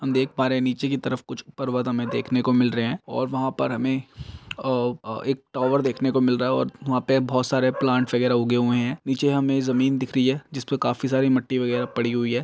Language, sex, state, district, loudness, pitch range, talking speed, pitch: Hindi, male, Chhattisgarh, Rajnandgaon, -23 LUFS, 125-135 Hz, 250 wpm, 130 Hz